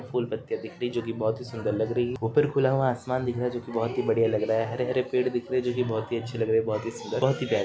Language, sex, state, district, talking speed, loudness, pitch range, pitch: Hindi, male, Jharkhand, Jamtara, 335 wpm, -27 LUFS, 115-125 Hz, 120 Hz